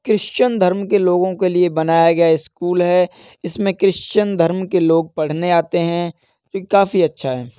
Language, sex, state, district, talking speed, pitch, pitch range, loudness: Hindi, male, Uttar Pradesh, Etah, 175 wpm, 175 Hz, 165-190 Hz, -16 LUFS